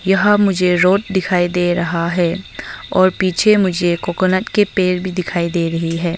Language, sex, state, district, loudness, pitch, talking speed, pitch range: Hindi, female, Arunachal Pradesh, Longding, -16 LUFS, 180 Hz, 175 wpm, 175-190 Hz